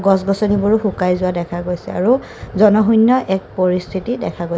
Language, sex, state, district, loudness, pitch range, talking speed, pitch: Assamese, female, Assam, Kamrup Metropolitan, -16 LUFS, 180-215 Hz, 155 wpm, 195 Hz